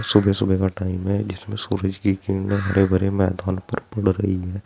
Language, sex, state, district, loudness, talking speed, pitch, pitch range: Hindi, male, Uttar Pradesh, Saharanpur, -22 LUFS, 205 wpm, 95 Hz, 95-100 Hz